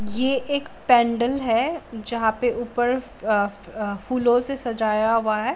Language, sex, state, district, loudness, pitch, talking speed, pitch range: Hindi, female, Bihar, Sitamarhi, -22 LUFS, 235 Hz, 140 wpm, 220-255 Hz